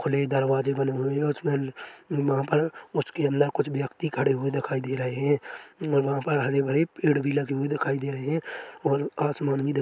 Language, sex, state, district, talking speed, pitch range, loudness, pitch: Hindi, male, Chhattisgarh, Korba, 210 wpm, 135-145 Hz, -26 LUFS, 140 Hz